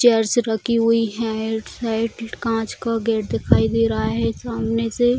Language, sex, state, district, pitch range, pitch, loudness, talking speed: Hindi, female, Bihar, Jamui, 220-230 Hz, 225 Hz, -21 LUFS, 185 wpm